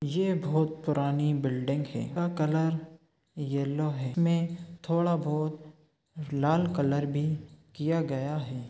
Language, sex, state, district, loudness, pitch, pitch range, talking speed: Hindi, male, Chhattisgarh, Sukma, -29 LUFS, 155 Hz, 145-165 Hz, 125 wpm